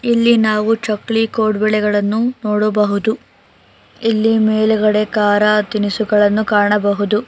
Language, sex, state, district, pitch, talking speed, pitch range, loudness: Kannada, female, Karnataka, Bangalore, 215 Hz, 80 wpm, 210-225 Hz, -15 LUFS